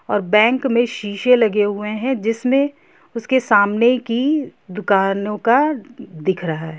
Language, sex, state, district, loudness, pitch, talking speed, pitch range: Hindi, female, Jharkhand, Sahebganj, -18 LUFS, 230 Hz, 140 wpm, 205-260 Hz